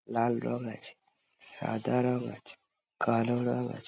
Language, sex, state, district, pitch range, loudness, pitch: Bengali, male, West Bengal, Dakshin Dinajpur, 115-125 Hz, -32 LUFS, 120 Hz